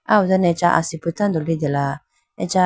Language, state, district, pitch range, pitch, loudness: Idu Mishmi, Arunachal Pradesh, Lower Dibang Valley, 165-185 Hz, 170 Hz, -20 LUFS